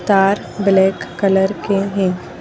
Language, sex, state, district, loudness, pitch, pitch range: Hindi, female, Madhya Pradesh, Bhopal, -16 LUFS, 195 Hz, 190-200 Hz